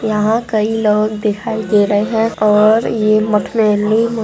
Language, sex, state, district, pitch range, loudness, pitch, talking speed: Hindi, female, Andhra Pradesh, Anantapur, 210-225 Hz, -14 LUFS, 215 Hz, 155 wpm